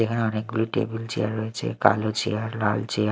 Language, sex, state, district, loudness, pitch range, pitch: Bengali, male, Odisha, Malkangiri, -25 LUFS, 105-115 Hz, 110 Hz